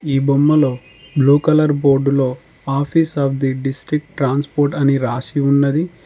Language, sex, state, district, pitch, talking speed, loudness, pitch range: Telugu, male, Telangana, Mahabubabad, 140 Hz, 130 wpm, -16 LUFS, 135-150 Hz